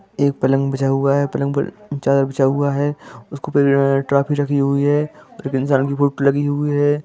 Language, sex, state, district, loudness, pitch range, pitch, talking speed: Hindi, male, Jharkhand, Jamtara, -18 LUFS, 135-145 Hz, 140 Hz, 205 wpm